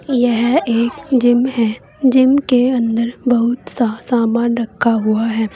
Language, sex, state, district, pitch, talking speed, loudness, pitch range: Hindi, female, Uttar Pradesh, Saharanpur, 240 Hz, 140 wpm, -15 LUFS, 230-250 Hz